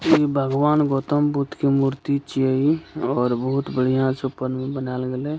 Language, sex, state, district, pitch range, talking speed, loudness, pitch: Maithili, male, Bihar, Begusarai, 130-145 Hz, 200 wpm, -22 LUFS, 135 Hz